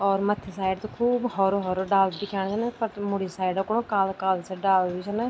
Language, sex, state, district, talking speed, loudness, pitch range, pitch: Garhwali, female, Uttarakhand, Tehri Garhwal, 250 wpm, -26 LUFS, 190-210 Hz, 195 Hz